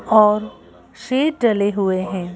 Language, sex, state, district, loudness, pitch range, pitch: Hindi, female, Madhya Pradesh, Bhopal, -18 LUFS, 190-230 Hz, 210 Hz